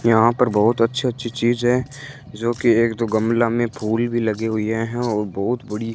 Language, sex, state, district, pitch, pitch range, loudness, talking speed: Hindi, female, Rajasthan, Bikaner, 115 Hz, 110-120 Hz, -20 LUFS, 200 wpm